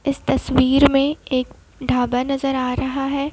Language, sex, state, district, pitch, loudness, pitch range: Hindi, female, Madhya Pradesh, Bhopal, 275 Hz, -19 LUFS, 255-280 Hz